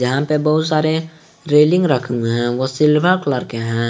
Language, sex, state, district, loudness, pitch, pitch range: Hindi, male, Jharkhand, Garhwa, -16 LUFS, 150 Hz, 125-155 Hz